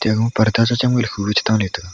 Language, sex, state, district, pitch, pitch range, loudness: Wancho, male, Arunachal Pradesh, Longding, 110 Hz, 105-115 Hz, -17 LUFS